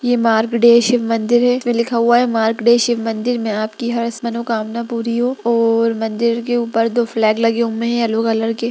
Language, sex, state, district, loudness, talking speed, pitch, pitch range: Hindi, female, Bihar, Gaya, -16 LUFS, 205 wpm, 235 Hz, 225-235 Hz